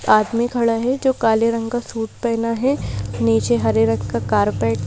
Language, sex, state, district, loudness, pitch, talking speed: Hindi, female, Madhya Pradesh, Bhopal, -19 LUFS, 220 Hz, 195 wpm